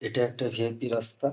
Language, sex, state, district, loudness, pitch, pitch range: Bengali, male, West Bengal, North 24 Parganas, -29 LUFS, 120 Hz, 115-125 Hz